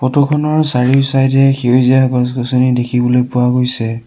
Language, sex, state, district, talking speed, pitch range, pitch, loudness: Assamese, male, Assam, Sonitpur, 105 wpm, 125-135 Hz, 125 Hz, -13 LUFS